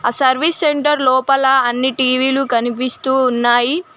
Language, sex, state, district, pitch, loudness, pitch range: Telugu, female, Telangana, Mahabubabad, 260 Hz, -15 LUFS, 255-275 Hz